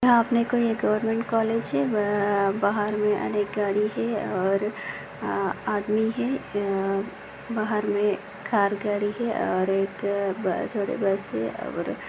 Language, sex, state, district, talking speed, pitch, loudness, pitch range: Hindi, female, Maharashtra, Aurangabad, 125 wpm, 205 Hz, -25 LUFS, 200-220 Hz